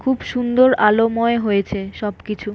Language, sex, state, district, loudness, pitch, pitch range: Bengali, female, West Bengal, North 24 Parganas, -18 LUFS, 215 Hz, 210-240 Hz